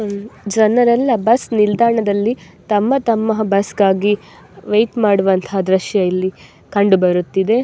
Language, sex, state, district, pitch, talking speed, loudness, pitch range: Kannada, female, Karnataka, Dakshina Kannada, 210 Hz, 95 wpm, -16 LUFS, 195-225 Hz